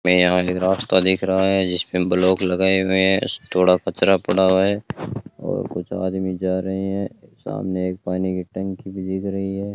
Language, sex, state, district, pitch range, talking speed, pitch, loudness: Hindi, male, Rajasthan, Bikaner, 90-95 Hz, 195 wpm, 95 Hz, -20 LUFS